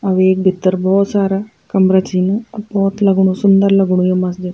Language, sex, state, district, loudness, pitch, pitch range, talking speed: Garhwali, female, Uttarakhand, Tehri Garhwal, -14 LUFS, 190 Hz, 185-200 Hz, 185 wpm